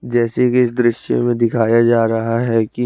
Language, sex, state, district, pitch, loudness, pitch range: Hindi, male, Chandigarh, Chandigarh, 120 Hz, -16 LUFS, 115-120 Hz